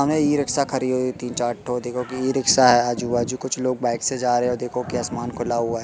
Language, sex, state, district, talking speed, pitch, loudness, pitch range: Hindi, male, Madhya Pradesh, Katni, 245 wpm, 125 Hz, -22 LUFS, 120-130 Hz